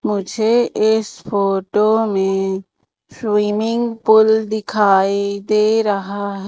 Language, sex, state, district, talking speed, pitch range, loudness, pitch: Hindi, female, Madhya Pradesh, Umaria, 85 wpm, 200-220 Hz, -17 LUFS, 210 Hz